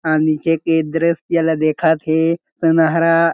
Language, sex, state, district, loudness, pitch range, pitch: Chhattisgarhi, male, Chhattisgarh, Jashpur, -16 LUFS, 160-165 Hz, 165 Hz